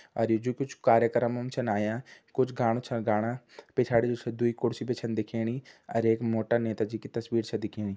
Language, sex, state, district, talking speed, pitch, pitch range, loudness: Garhwali, male, Uttarakhand, Tehri Garhwal, 220 wpm, 115 Hz, 110-120 Hz, -29 LUFS